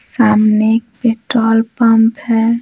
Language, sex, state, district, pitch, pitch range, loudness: Hindi, female, Bihar, Patna, 225 Hz, 225-230 Hz, -13 LUFS